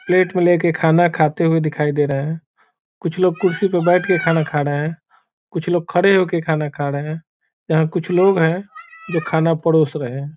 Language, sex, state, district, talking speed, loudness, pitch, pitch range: Hindi, male, Bihar, Saran, 225 wpm, -18 LUFS, 165 Hz, 155-180 Hz